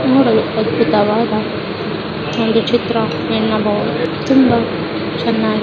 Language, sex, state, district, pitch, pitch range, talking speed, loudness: Kannada, female, Karnataka, Chamarajanagar, 225 Hz, 210-240 Hz, 75 wpm, -16 LUFS